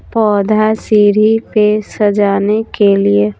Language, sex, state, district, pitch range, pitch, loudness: Hindi, female, Bihar, Patna, 200-215 Hz, 210 Hz, -12 LUFS